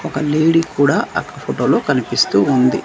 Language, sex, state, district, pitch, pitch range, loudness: Telugu, male, Andhra Pradesh, Manyam, 145 Hz, 130-160 Hz, -16 LUFS